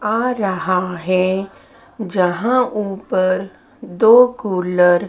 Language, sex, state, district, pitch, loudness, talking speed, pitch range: Hindi, female, Madhya Pradesh, Dhar, 195 Hz, -17 LUFS, 95 wpm, 185-235 Hz